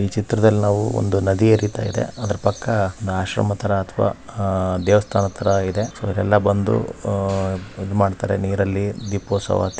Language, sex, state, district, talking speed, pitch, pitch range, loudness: Kannada, male, Karnataka, Raichur, 155 wpm, 100 Hz, 100-105 Hz, -20 LUFS